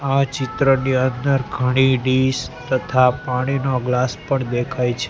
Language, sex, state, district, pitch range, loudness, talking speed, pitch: Gujarati, male, Gujarat, Gandhinagar, 125-135 Hz, -19 LUFS, 130 wpm, 130 Hz